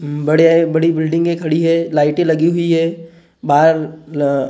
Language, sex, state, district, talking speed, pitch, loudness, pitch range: Hindi, male, Maharashtra, Gondia, 135 wpm, 160 Hz, -15 LUFS, 155-165 Hz